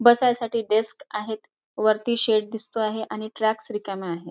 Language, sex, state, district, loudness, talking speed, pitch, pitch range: Marathi, female, Maharashtra, Nagpur, -24 LUFS, 155 wpm, 220 Hz, 215-230 Hz